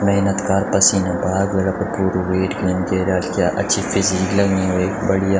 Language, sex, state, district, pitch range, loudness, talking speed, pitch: Garhwali, male, Uttarakhand, Tehri Garhwal, 95-100 Hz, -18 LUFS, 180 wpm, 95 Hz